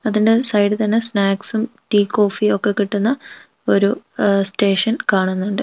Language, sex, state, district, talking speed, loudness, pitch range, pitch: Malayalam, female, Kerala, Wayanad, 130 wpm, -18 LUFS, 200-225 Hz, 210 Hz